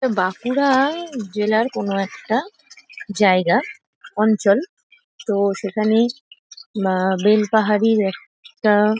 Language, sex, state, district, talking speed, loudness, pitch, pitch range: Bengali, female, West Bengal, Paschim Medinipur, 80 wpm, -19 LUFS, 215 Hz, 200-255 Hz